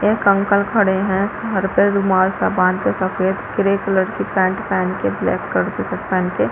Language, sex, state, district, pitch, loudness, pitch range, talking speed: Hindi, female, Chhattisgarh, Balrampur, 195 Hz, -18 LUFS, 185-200 Hz, 220 wpm